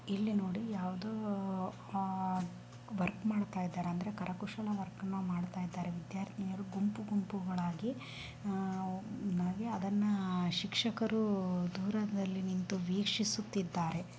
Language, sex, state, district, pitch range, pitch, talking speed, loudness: Kannada, female, Karnataka, Bijapur, 185-205 Hz, 195 Hz, 80 wpm, -37 LUFS